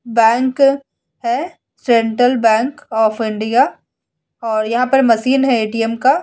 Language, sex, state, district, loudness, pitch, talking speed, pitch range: Hindi, female, Bihar, Vaishali, -15 LUFS, 240 Hz, 125 wpm, 225-270 Hz